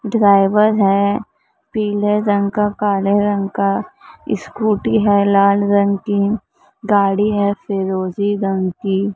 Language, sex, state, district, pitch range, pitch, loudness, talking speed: Hindi, female, Maharashtra, Mumbai Suburban, 200-210 Hz, 200 Hz, -16 LUFS, 120 wpm